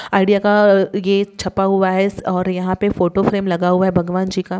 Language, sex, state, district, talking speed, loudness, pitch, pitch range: Hindi, female, Maharashtra, Pune, 235 wpm, -16 LUFS, 190 Hz, 185-200 Hz